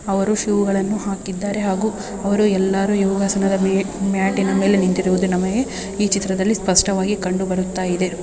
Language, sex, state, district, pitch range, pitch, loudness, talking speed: Kannada, female, Karnataka, Bijapur, 190-200 Hz, 195 Hz, -19 LUFS, 130 wpm